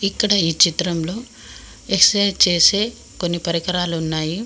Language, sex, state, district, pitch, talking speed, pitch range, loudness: Telugu, female, Telangana, Mahabubabad, 180 Hz, 110 wpm, 170-200 Hz, -17 LUFS